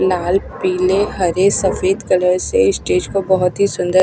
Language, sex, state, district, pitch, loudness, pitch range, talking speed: Hindi, female, Odisha, Malkangiri, 190 Hz, -16 LUFS, 185-200 Hz, 165 wpm